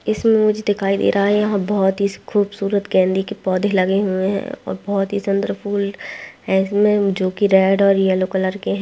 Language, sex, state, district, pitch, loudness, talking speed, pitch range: Hindi, female, Bihar, Saharsa, 200 Hz, -18 LUFS, 210 wpm, 190-205 Hz